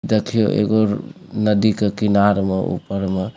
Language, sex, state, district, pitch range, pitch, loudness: Maithili, male, Bihar, Supaul, 100-110 Hz, 105 Hz, -18 LUFS